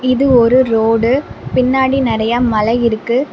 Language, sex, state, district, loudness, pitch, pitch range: Tamil, female, Tamil Nadu, Namakkal, -13 LUFS, 245 Hz, 225-260 Hz